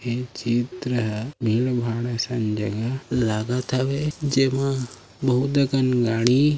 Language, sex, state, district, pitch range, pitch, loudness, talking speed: Chhattisgarhi, male, Chhattisgarh, Raigarh, 115-135 Hz, 125 Hz, -23 LUFS, 120 wpm